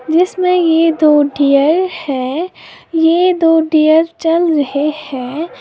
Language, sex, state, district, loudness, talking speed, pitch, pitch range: Hindi, female, Uttar Pradesh, Lalitpur, -13 LUFS, 120 wpm, 325 Hz, 295-340 Hz